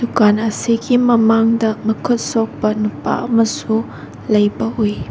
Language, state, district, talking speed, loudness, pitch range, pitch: Manipuri, Manipur, Imphal West, 105 wpm, -16 LUFS, 215-230 Hz, 225 Hz